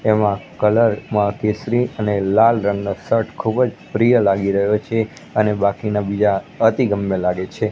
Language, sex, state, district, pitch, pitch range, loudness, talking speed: Gujarati, male, Gujarat, Gandhinagar, 105 Hz, 100-110 Hz, -18 LUFS, 145 wpm